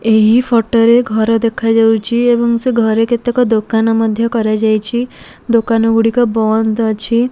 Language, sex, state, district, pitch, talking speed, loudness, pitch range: Odia, female, Odisha, Malkangiri, 225 Hz, 125 wpm, -13 LUFS, 220-235 Hz